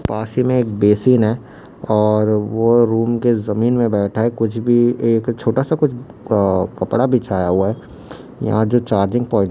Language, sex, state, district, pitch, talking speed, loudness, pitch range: Hindi, male, Chhattisgarh, Raipur, 115 Hz, 190 wpm, -17 LUFS, 105-120 Hz